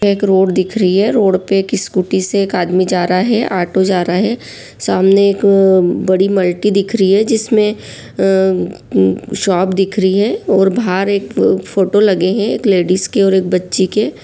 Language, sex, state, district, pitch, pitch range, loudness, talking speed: Hindi, female, Jharkhand, Sahebganj, 195 Hz, 185-205 Hz, -13 LUFS, 195 wpm